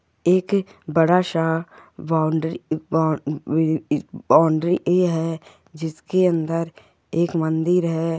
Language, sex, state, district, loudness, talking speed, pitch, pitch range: Hindi, female, Goa, North and South Goa, -21 LUFS, 80 wpm, 165 Hz, 160-170 Hz